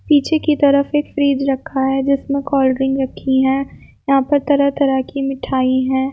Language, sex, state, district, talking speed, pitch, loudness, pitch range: Hindi, female, Uttar Pradesh, Muzaffarnagar, 175 wpm, 275 Hz, -16 LUFS, 265-280 Hz